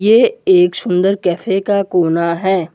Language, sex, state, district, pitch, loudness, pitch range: Hindi, male, Assam, Kamrup Metropolitan, 190 Hz, -14 LUFS, 180-225 Hz